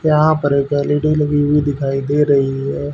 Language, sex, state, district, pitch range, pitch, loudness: Hindi, male, Haryana, Charkhi Dadri, 140-150 Hz, 145 Hz, -16 LUFS